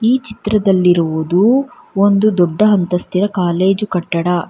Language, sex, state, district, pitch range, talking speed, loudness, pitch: Kannada, female, Karnataka, Bangalore, 175-215 Hz, 95 wpm, -14 LUFS, 195 Hz